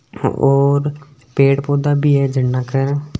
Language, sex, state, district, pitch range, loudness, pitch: Marwari, male, Rajasthan, Nagaur, 135-145 Hz, -16 LUFS, 140 Hz